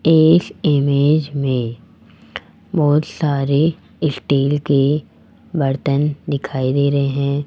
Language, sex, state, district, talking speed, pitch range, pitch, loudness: Hindi, male, Rajasthan, Jaipur, 95 wpm, 140-155 Hz, 145 Hz, -17 LUFS